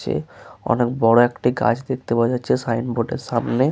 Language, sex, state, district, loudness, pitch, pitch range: Bengali, male, West Bengal, Paschim Medinipur, -20 LUFS, 120 Hz, 115-125 Hz